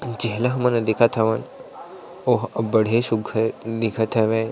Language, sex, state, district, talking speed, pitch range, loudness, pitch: Chhattisgarhi, male, Chhattisgarh, Sarguja, 135 wpm, 110-115 Hz, -21 LUFS, 115 Hz